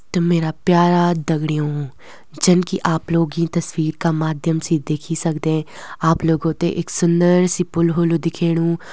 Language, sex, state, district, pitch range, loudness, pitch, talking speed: Garhwali, female, Uttarakhand, Uttarkashi, 160-175 Hz, -18 LUFS, 165 Hz, 155 wpm